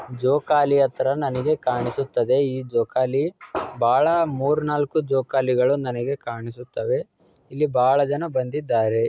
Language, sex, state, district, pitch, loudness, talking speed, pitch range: Kannada, male, Karnataka, Dakshina Kannada, 135 Hz, -22 LUFS, 105 wpm, 125-145 Hz